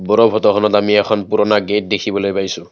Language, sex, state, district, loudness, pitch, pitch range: Assamese, male, Assam, Kamrup Metropolitan, -15 LUFS, 105 Hz, 100-105 Hz